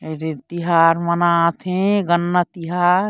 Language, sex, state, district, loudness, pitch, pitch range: Chhattisgarhi, female, Chhattisgarh, Korba, -18 LUFS, 170 Hz, 165-180 Hz